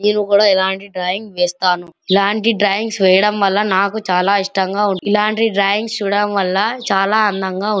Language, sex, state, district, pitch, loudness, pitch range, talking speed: Telugu, male, Andhra Pradesh, Anantapur, 200 Hz, -16 LUFS, 190-210 Hz, 160 wpm